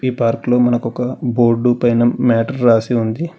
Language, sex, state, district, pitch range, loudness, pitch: Telugu, male, Telangana, Hyderabad, 115-125 Hz, -15 LUFS, 120 Hz